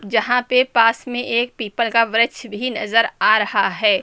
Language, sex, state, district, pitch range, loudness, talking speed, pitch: Hindi, female, Uttar Pradesh, Lucknow, 220-245 Hz, -18 LUFS, 195 wpm, 230 Hz